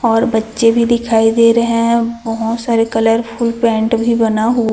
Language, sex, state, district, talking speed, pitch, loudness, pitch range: Hindi, female, Chhattisgarh, Raipur, 180 wpm, 230 Hz, -14 LUFS, 225-235 Hz